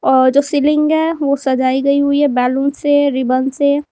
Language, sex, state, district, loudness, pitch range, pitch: Hindi, female, Uttar Pradesh, Lalitpur, -14 LUFS, 265-290 Hz, 280 Hz